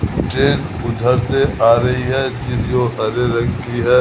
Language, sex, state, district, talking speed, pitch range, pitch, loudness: Hindi, male, Bihar, Patna, 165 wpm, 115-125 Hz, 120 Hz, -17 LUFS